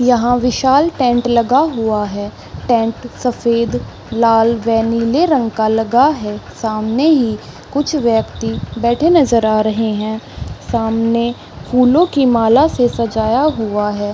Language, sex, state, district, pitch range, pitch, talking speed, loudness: Hindi, female, Chhattisgarh, Raigarh, 220-250 Hz, 230 Hz, 135 wpm, -15 LUFS